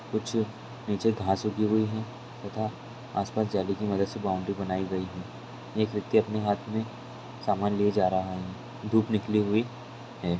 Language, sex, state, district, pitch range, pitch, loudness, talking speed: Hindi, male, Maharashtra, Pune, 100-110 Hz, 105 Hz, -29 LUFS, 175 wpm